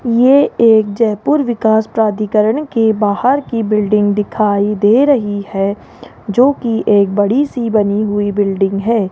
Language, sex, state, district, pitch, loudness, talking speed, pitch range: Hindi, female, Rajasthan, Jaipur, 215 Hz, -13 LUFS, 145 wpm, 205-235 Hz